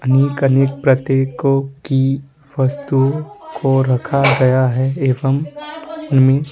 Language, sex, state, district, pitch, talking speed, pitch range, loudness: Hindi, male, Bihar, Patna, 135 Hz, 100 wpm, 135-140 Hz, -16 LUFS